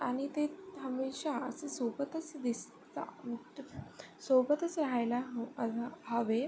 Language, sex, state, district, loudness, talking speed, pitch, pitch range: Marathi, female, Maharashtra, Sindhudurg, -36 LUFS, 90 wpm, 260 Hz, 240-295 Hz